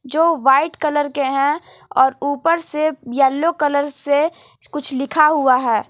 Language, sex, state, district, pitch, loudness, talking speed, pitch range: Hindi, female, Jharkhand, Garhwa, 285 Hz, -17 LUFS, 150 wpm, 270-310 Hz